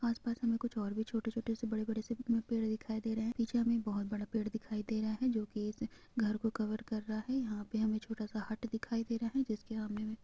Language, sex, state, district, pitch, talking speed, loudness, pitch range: Hindi, female, Chhattisgarh, Bilaspur, 225 Hz, 265 wpm, -37 LUFS, 215-230 Hz